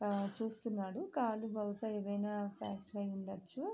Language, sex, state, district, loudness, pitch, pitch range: Telugu, female, Andhra Pradesh, Srikakulam, -41 LUFS, 205 Hz, 200-225 Hz